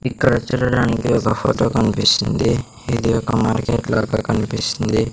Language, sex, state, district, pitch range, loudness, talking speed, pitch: Telugu, male, Andhra Pradesh, Sri Satya Sai, 110-120 Hz, -18 LUFS, 95 wpm, 115 Hz